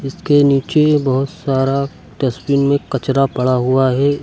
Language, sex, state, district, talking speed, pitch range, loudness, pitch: Hindi, male, Uttar Pradesh, Lucknow, 140 wpm, 130-140 Hz, -15 LUFS, 135 Hz